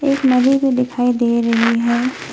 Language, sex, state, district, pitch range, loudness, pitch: Hindi, female, West Bengal, Alipurduar, 235-265 Hz, -16 LUFS, 250 Hz